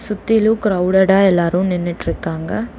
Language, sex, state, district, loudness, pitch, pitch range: Tamil, female, Tamil Nadu, Chennai, -16 LUFS, 190 Hz, 175-215 Hz